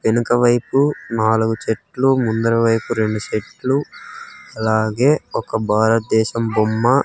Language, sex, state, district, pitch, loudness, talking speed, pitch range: Telugu, male, Andhra Pradesh, Sri Satya Sai, 115 Hz, -18 LUFS, 100 wpm, 110-120 Hz